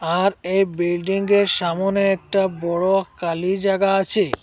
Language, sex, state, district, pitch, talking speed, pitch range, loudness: Bengali, male, Assam, Hailakandi, 195 Hz, 120 wpm, 175-195 Hz, -20 LUFS